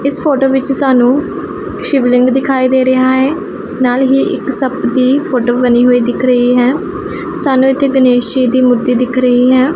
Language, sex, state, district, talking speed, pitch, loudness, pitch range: Punjabi, female, Punjab, Pathankot, 180 wpm, 260 Hz, -11 LUFS, 250-275 Hz